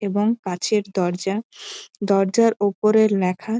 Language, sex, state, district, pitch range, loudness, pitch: Bengali, female, West Bengal, Malda, 195-215 Hz, -20 LUFS, 205 Hz